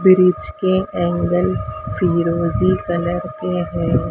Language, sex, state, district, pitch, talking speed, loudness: Hindi, female, Maharashtra, Mumbai Suburban, 175 Hz, 100 wpm, -18 LUFS